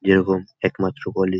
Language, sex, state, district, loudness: Bengali, male, West Bengal, North 24 Parganas, -22 LUFS